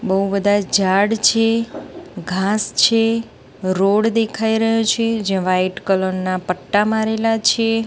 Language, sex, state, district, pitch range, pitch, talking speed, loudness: Gujarati, female, Gujarat, Gandhinagar, 190-225 Hz, 210 Hz, 130 wpm, -17 LUFS